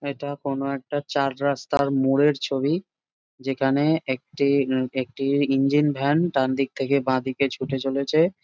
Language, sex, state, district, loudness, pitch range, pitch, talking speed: Bengali, male, West Bengal, Jalpaiguri, -23 LUFS, 135-145 Hz, 140 Hz, 130 wpm